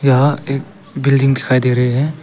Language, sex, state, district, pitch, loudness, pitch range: Hindi, male, Arunachal Pradesh, Papum Pare, 135 Hz, -15 LUFS, 130-140 Hz